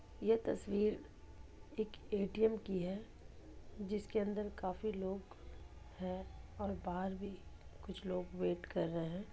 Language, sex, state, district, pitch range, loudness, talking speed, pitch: Hindi, female, Jharkhand, Sahebganj, 180-210 Hz, -41 LUFS, 130 wpm, 195 Hz